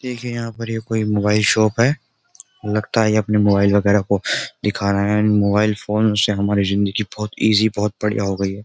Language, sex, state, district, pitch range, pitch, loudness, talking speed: Hindi, male, Uttar Pradesh, Jyotiba Phule Nagar, 100-110 Hz, 105 Hz, -18 LUFS, 210 wpm